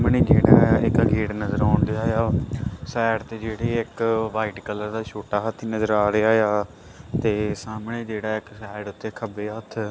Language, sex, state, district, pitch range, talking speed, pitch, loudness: Punjabi, male, Punjab, Kapurthala, 105-115 Hz, 150 wpm, 110 Hz, -23 LUFS